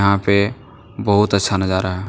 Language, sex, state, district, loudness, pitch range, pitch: Hindi, male, Jharkhand, Deoghar, -17 LUFS, 95-100 Hz, 100 Hz